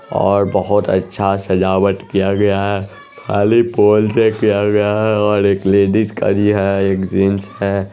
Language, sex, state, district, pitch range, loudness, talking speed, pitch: Hindi, male, Bihar, Araria, 95-105 Hz, -15 LUFS, 160 wpm, 100 Hz